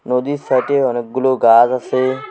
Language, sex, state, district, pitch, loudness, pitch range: Bengali, male, West Bengal, Alipurduar, 130 Hz, -15 LUFS, 125-130 Hz